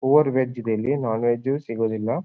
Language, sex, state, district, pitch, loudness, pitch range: Kannada, male, Karnataka, Bijapur, 120 Hz, -23 LUFS, 115-140 Hz